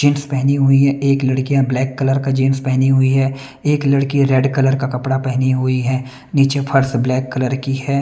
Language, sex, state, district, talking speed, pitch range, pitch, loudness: Hindi, male, Bihar, West Champaran, 210 wpm, 130-140 Hz, 135 Hz, -16 LUFS